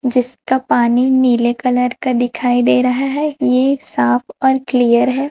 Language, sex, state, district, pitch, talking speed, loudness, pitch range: Hindi, female, Chhattisgarh, Raipur, 250 Hz, 160 wpm, -15 LUFS, 245-265 Hz